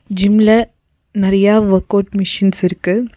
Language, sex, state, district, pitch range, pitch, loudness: Tamil, female, Tamil Nadu, Nilgiris, 190-215 Hz, 200 Hz, -14 LUFS